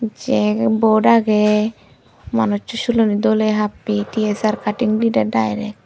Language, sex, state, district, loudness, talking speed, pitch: Chakma, female, Tripura, Unakoti, -17 LUFS, 135 wpm, 210 Hz